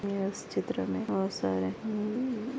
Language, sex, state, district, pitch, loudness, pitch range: Hindi, female, Maharashtra, Pune, 200 Hz, -32 LUFS, 190-225 Hz